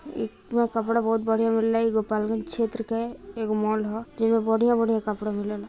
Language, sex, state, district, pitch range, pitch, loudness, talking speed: Bhojpuri, female, Bihar, Gopalganj, 215-230 Hz, 225 Hz, -25 LUFS, 160 wpm